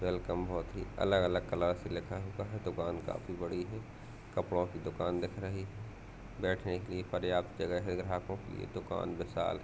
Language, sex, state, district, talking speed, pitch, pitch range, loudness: Hindi, male, Uttar Pradesh, Hamirpur, 185 wpm, 90 Hz, 90-100 Hz, -37 LUFS